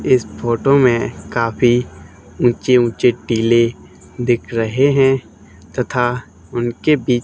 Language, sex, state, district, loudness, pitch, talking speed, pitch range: Hindi, male, Haryana, Charkhi Dadri, -16 LUFS, 120 Hz, 110 wpm, 115-125 Hz